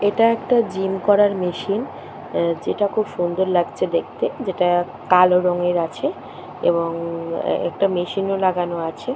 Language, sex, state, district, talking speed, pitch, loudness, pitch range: Bengali, female, West Bengal, Purulia, 145 wpm, 180 Hz, -20 LUFS, 175-200 Hz